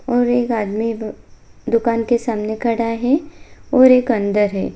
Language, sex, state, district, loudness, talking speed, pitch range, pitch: Hindi, female, Bihar, Bhagalpur, -17 LUFS, 150 wpm, 220-245 Hz, 230 Hz